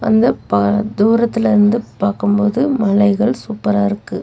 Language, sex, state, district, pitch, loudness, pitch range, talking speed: Tamil, female, Tamil Nadu, Nilgiris, 210 Hz, -15 LUFS, 205-230 Hz, 85 wpm